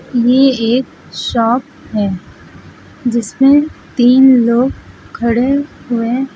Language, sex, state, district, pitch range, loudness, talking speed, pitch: Hindi, female, Uttar Pradesh, Lucknow, 235-265 Hz, -13 LUFS, 95 wpm, 245 Hz